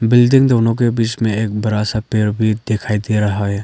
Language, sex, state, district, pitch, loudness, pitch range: Hindi, male, Arunachal Pradesh, Lower Dibang Valley, 110 Hz, -16 LUFS, 105-115 Hz